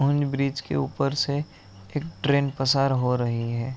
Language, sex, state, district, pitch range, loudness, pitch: Hindi, male, Bihar, Araria, 120-140 Hz, -25 LUFS, 135 Hz